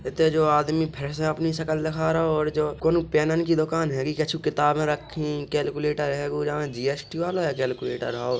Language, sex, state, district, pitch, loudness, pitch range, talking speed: Bundeli, male, Uttar Pradesh, Hamirpur, 150 Hz, -25 LUFS, 145-160 Hz, 185 wpm